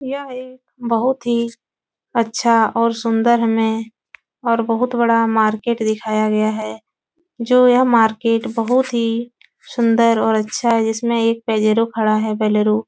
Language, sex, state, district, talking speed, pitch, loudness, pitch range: Hindi, female, Uttar Pradesh, Etah, 145 wpm, 230 Hz, -17 LUFS, 220-235 Hz